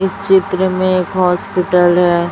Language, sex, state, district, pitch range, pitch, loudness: Hindi, female, Chhattisgarh, Raipur, 180-190 Hz, 185 Hz, -14 LUFS